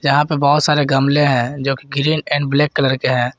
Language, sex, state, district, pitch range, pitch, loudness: Hindi, male, Jharkhand, Garhwa, 135-145 Hz, 140 Hz, -16 LUFS